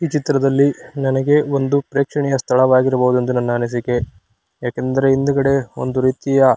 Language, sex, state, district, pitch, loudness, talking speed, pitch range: Kannada, male, Karnataka, Raichur, 135 Hz, -17 LUFS, 120 wpm, 125-140 Hz